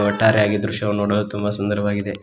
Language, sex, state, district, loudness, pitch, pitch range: Kannada, male, Karnataka, Koppal, -20 LUFS, 105 Hz, 100-105 Hz